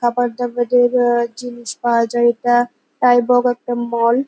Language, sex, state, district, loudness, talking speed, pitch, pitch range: Bengali, female, West Bengal, North 24 Parganas, -17 LUFS, 170 wpm, 240 Hz, 240-245 Hz